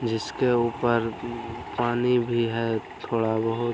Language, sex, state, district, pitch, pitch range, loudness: Hindi, male, Bihar, Araria, 120 Hz, 115-120 Hz, -26 LUFS